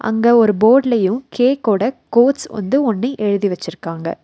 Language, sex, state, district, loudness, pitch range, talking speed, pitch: Tamil, female, Tamil Nadu, Nilgiris, -16 LUFS, 200-250 Hz, 125 wpm, 220 Hz